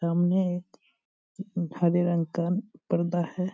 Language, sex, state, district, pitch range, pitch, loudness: Hindi, male, Bihar, Purnia, 170-185 Hz, 175 Hz, -28 LUFS